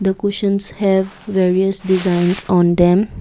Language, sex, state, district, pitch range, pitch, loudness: English, female, Assam, Kamrup Metropolitan, 180-200 Hz, 190 Hz, -16 LUFS